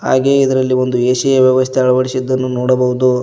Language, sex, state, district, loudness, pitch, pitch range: Kannada, male, Karnataka, Koppal, -13 LUFS, 130 Hz, 125-130 Hz